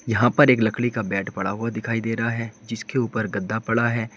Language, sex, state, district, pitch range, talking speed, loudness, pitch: Hindi, male, Uttar Pradesh, Saharanpur, 110-120 Hz, 245 wpm, -23 LUFS, 115 Hz